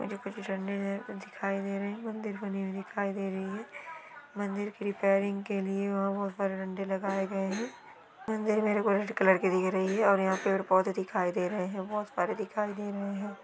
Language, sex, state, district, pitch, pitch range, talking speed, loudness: Hindi, female, Bihar, Gopalganj, 200 Hz, 195-210 Hz, 220 wpm, -31 LUFS